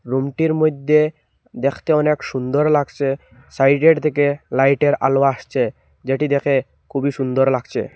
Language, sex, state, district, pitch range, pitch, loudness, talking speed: Bengali, male, Assam, Hailakandi, 135-150 Hz, 140 Hz, -18 LUFS, 120 wpm